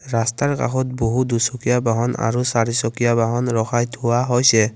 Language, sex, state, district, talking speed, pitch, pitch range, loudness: Assamese, male, Assam, Kamrup Metropolitan, 140 wpm, 120 Hz, 115-125 Hz, -19 LUFS